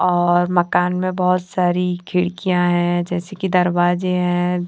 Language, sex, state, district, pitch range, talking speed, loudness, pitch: Hindi, female, Haryana, Charkhi Dadri, 175-180 Hz, 140 wpm, -18 LUFS, 180 Hz